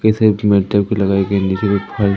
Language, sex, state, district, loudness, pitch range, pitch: Hindi, male, Madhya Pradesh, Umaria, -15 LUFS, 100-105 Hz, 100 Hz